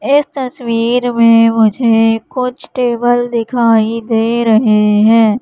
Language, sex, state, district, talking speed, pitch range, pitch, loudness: Hindi, female, Madhya Pradesh, Katni, 110 wpm, 225-245 Hz, 230 Hz, -12 LUFS